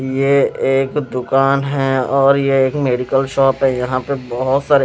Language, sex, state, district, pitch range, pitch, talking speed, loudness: Hindi, male, Himachal Pradesh, Shimla, 130-140 Hz, 135 Hz, 175 wpm, -16 LUFS